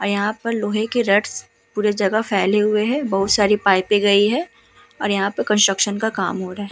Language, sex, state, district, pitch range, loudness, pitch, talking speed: Hindi, female, Uttar Pradesh, Hamirpur, 200-215 Hz, -18 LUFS, 205 Hz, 225 wpm